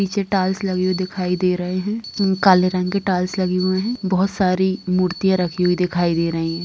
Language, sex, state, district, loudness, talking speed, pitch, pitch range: Hindi, female, Bihar, Muzaffarpur, -19 LUFS, 235 wpm, 185 Hz, 180-190 Hz